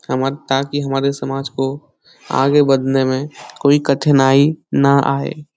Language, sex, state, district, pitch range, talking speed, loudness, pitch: Hindi, male, Bihar, Lakhisarai, 135-145 Hz, 130 wpm, -16 LUFS, 140 Hz